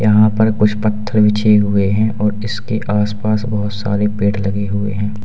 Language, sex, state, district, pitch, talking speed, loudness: Hindi, male, Uttar Pradesh, Lalitpur, 105 Hz, 195 wpm, -16 LUFS